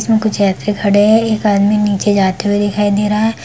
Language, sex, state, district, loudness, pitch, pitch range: Hindi, female, Bihar, Sitamarhi, -13 LUFS, 205 Hz, 205-215 Hz